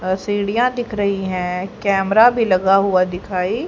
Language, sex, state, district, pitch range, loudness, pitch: Hindi, female, Haryana, Rohtak, 185-210 Hz, -17 LUFS, 195 Hz